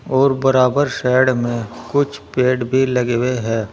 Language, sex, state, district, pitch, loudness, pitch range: Hindi, male, Uttar Pradesh, Saharanpur, 125 Hz, -17 LUFS, 120-135 Hz